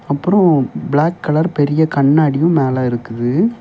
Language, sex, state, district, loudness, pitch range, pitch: Tamil, male, Tamil Nadu, Kanyakumari, -15 LUFS, 135-165 Hz, 150 Hz